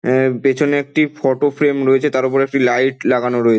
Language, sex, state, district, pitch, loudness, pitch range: Bengali, male, West Bengal, Dakshin Dinajpur, 135 Hz, -16 LUFS, 130-145 Hz